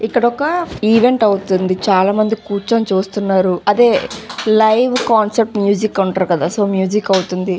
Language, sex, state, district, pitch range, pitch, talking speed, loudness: Telugu, female, Andhra Pradesh, Visakhapatnam, 190-225 Hz, 205 Hz, 135 wpm, -15 LUFS